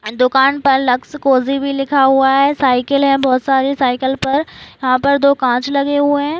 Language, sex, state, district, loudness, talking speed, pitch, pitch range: Hindi, female, Maharashtra, Sindhudurg, -14 LUFS, 195 wpm, 270 Hz, 260-280 Hz